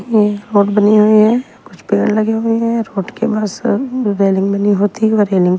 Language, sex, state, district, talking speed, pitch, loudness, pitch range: Hindi, female, Delhi, New Delhi, 215 wpm, 215 Hz, -14 LUFS, 205-225 Hz